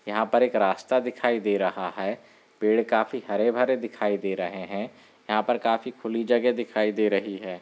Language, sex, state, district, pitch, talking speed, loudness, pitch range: Hindi, male, Bihar, Samastipur, 110 Hz, 195 wpm, -25 LUFS, 100-120 Hz